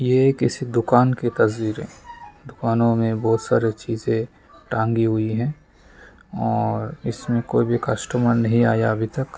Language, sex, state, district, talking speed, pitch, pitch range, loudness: Hindi, male, West Bengal, Jalpaiguri, 140 wpm, 115 Hz, 110-125 Hz, -21 LUFS